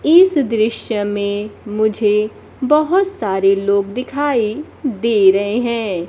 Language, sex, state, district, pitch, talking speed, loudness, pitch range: Hindi, female, Bihar, Kaimur, 215 Hz, 110 wpm, -17 LUFS, 205-270 Hz